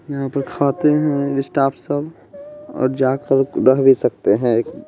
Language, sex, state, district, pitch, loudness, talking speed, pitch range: Hindi, male, Bihar, West Champaran, 140 Hz, -17 LUFS, 160 wpm, 135-150 Hz